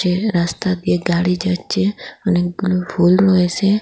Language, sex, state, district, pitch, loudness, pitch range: Bengali, female, Assam, Hailakandi, 180 Hz, -17 LUFS, 175-195 Hz